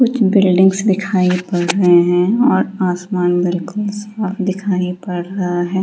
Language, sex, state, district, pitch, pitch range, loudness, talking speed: Hindi, female, Bihar, Gaya, 190 Hz, 180-200 Hz, -16 LUFS, 155 wpm